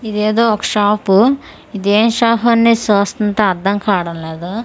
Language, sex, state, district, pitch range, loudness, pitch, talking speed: Telugu, female, Andhra Pradesh, Manyam, 200-230 Hz, -14 LUFS, 210 Hz, 130 wpm